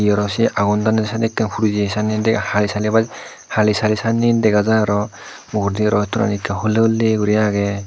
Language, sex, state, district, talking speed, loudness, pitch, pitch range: Chakma, male, Tripura, Dhalai, 170 wpm, -18 LUFS, 105 Hz, 105-110 Hz